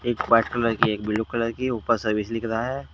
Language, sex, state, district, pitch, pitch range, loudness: Hindi, male, Uttar Pradesh, Shamli, 115 Hz, 110-120 Hz, -24 LUFS